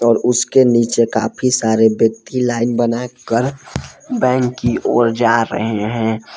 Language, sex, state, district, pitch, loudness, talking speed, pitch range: Hindi, male, Jharkhand, Palamu, 115 Hz, -16 LUFS, 140 wpm, 115-125 Hz